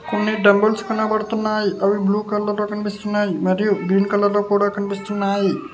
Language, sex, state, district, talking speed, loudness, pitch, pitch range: Telugu, male, Telangana, Hyderabad, 125 wpm, -19 LUFS, 205 Hz, 200-210 Hz